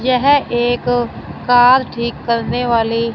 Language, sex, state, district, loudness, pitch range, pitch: Hindi, female, Punjab, Fazilka, -15 LUFS, 235-250 Hz, 245 Hz